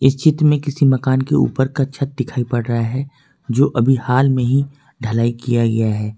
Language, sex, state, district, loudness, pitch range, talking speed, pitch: Hindi, male, Jharkhand, Ranchi, -17 LUFS, 120-140 Hz, 215 wpm, 130 Hz